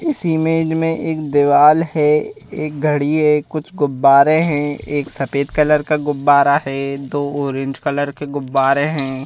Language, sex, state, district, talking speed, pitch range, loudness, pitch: Hindi, male, Madhya Pradesh, Bhopal, 155 wpm, 140-155 Hz, -16 LUFS, 145 Hz